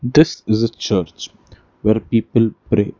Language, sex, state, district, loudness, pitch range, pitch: English, male, Karnataka, Bangalore, -18 LUFS, 110-120 Hz, 115 Hz